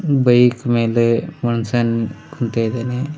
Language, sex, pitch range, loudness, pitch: Kannada, male, 115-130 Hz, -18 LUFS, 120 Hz